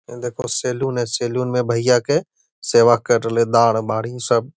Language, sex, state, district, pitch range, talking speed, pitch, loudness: Magahi, male, Bihar, Gaya, 115-125 Hz, 185 wpm, 120 Hz, -18 LUFS